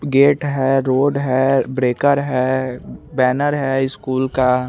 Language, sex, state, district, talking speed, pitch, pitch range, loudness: Hindi, male, Chandigarh, Chandigarh, 130 wpm, 135 Hz, 130-140 Hz, -17 LUFS